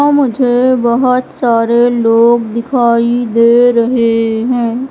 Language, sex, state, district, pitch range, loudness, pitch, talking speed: Hindi, female, Madhya Pradesh, Katni, 230-250 Hz, -11 LUFS, 235 Hz, 110 wpm